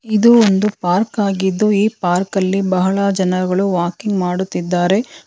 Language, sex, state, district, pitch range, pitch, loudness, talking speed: Kannada, female, Karnataka, Bangalore, 185-210 Hz, 195 Hz, -16 LUFS, 115 wpm